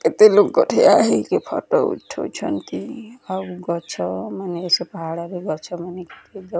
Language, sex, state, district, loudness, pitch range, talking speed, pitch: Odia, female, Odisha, Nuapada, -20 LUFS, 170-195 Hz, 125 wpm, 180 Hz